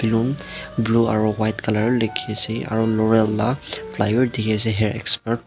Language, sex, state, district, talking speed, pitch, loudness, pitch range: Nagamese, male, Nagaland, Dimapur, 155 wpm, 110 Hz, -21 LUFS, 110-115 Hz